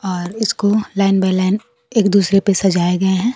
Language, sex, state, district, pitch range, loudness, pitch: Hindi, female, Bihar, Kaimur, 190-205 Hz, -16 LUFS, 195 Hz